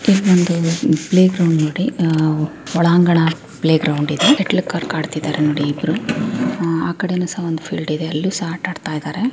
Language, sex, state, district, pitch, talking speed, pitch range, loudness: Kannada, female, Karnataka, Raichur, 165 Hz, 160 wpm, 155-180 Hz, -17 LUFS